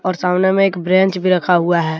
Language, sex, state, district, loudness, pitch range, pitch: Hindi, male, Jharkhand, Deoghar, -15 LUFS, 175-185 Hz, 185 Hz